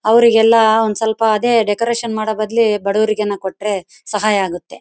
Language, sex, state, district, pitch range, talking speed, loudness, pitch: Kannada, female, Karnataka, Bellary, 210-225 Hz, 135 wpm, -15 LUFS, 215 Hz